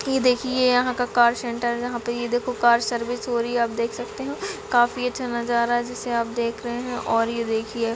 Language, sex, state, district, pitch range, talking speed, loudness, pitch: Hindi, female, Chhattisgarh, Bilaspur, 235-245 Hz, 240 wpm, -23 LUFS, 240 Hz